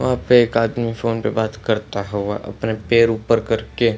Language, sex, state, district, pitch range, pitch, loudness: Hindi, male, Bihar, Samastipur, 110-115 Hz, 115 Hz, -19 LUFS